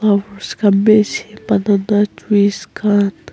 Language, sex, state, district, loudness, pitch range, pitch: Nagamese, female, Nagaland, Kohima, -15 LUFS, 200-210 Hz, 205 Hz